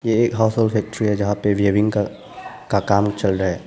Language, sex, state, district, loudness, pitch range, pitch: Hindi, male, Arunachal Pradesh, Papum Pare, -19 LUFS, 100-110 Hz, 105 Hz